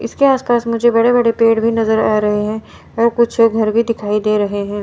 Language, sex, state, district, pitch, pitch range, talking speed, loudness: Hindi, female, Chandigarh, Chandigarh, 230 Hz, 215-235 Hz, 235 wpm, -14 LUFS